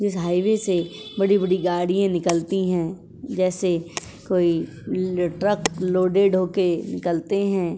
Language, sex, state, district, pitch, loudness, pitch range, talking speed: Hindi, female, Uttar Pradesh, Jyotiba Phule Nagar, 185 Hz, -22 LUFS, 175-195 Hz, 115 wpm